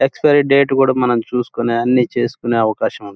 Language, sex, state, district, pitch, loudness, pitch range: Telugu, male, Andhra Pradesh, Krishna, 125 Hz, -15 LUFS, 115-135 Hz